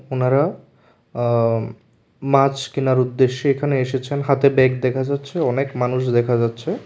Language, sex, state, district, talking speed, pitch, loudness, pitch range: Bengali, male, Tripura, West Tripura, 125 wpm, 130 Hz, -19 LUFS, 125-140 Hz